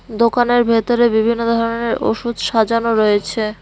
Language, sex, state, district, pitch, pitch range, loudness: Bengali, female, West Bengal, Cooch Behar, 230 Hz, 225-235 Hz, -16 LUFS